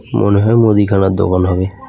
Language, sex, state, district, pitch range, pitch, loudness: Bengali, male, West Bengal, Alipurduar, 95-110 Hz, 100 Hz, -13 LUFS